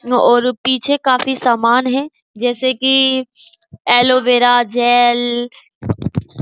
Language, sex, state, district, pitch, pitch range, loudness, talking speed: Hindi, female, Uttar Pradesh, Jyotiba Phule Nagar, 245 Hz, 240-260 Hz, -14 LUFS, 95 wpm